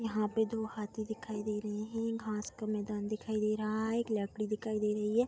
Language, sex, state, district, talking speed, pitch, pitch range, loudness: Hindi, female, Bihar, Vaishali, 240 wpm, 215 Hz, 210-220 Hz, -36 LUFS